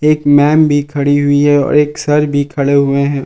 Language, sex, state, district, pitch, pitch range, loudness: Hindi, male, Jharkhand, Palamu, 145 Hz, 140-150 Hz, -11 LUFS